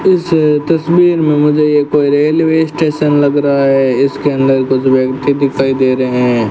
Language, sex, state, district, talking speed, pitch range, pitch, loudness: Hindi, male, Rajasthan, Bikaner, 175 wpm, 135-155 Hz, 145 Hz, -12 LUFS